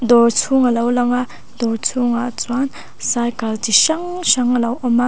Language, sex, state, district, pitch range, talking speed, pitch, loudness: Mizo, female, Mizoram, Aizawl, 235-250 Hz, 200 wpm, 245 Hz, -17 LUFS